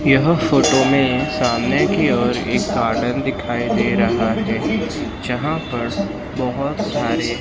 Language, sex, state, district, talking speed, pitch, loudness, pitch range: Hindi, male, Maharashtra, Mumbai Suburban, 130 wpm, 135 Hz, -18 LUFS, 130-155 Hz